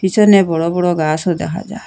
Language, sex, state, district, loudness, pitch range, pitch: Bengali, female, Assam, Hailakandi, -14 LUFS, 165-200 Hz, 175 Hz